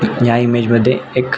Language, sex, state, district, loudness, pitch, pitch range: Marathi, male, Maharashtra, Nagpur, -14 LUFS, 120 Hz, 115-125 Hz